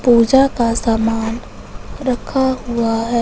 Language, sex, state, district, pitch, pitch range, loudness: Hindi, male, Punjab, Fazilka, 235 Hz, 230-255 Hz, -16 LUFS